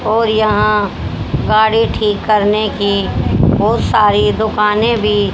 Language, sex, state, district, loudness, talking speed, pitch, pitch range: Hindi, female, Haryana, Rohtak, -13 LUFS, 110 wpm, 210 Hz, 210-220 Hz